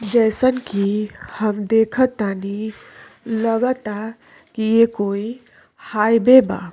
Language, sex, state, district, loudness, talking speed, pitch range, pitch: Bhojpuri, female, Uttar Pradesh, Deoria, -18 LUFS, 90 wpm, 210-240 Hz, 225 Hz